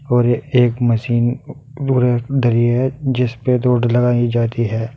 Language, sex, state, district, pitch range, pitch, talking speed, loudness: Hindi, male, Uttar Pradesh, Saharanpur, 120-130 Hz, 120 Hz, 135 wpm, -17 LUFS